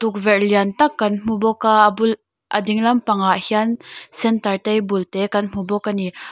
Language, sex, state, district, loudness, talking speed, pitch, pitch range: Mizo, female, Mizoram, Aizawl, -18 LUFS, 200 wpm, 210 Hz, 200-225 Hz